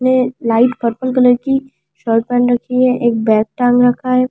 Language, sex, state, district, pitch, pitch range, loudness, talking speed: Hindi, female, Delhi, New Delhi, 245 Hz, 235-255 Hz, -14 LUFS, 195 wpm